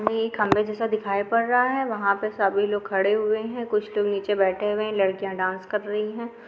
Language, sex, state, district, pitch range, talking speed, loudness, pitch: Hindi, female, Andhra Pradesh, Krishna, 200-220 Hz, 240 wpm, -24 LUFS, 210 Hz